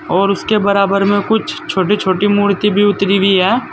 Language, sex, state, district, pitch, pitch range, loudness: Hindi, male, Uttar Pradesh, Saharanpur, 200 Hz, 195-205 Hz, -13 LUFS